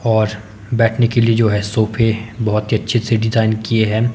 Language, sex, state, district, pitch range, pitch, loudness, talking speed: Hindi, male, Himachal Pradesh, Shimla, 110-115 Hz, 110 Hz, -16 LUFS, 200 wpm